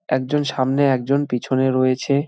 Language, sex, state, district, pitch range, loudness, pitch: Bengali, male, West Bengal, Jalpaiguri, 130-140 Hz, -19 LUFS, 135 Hz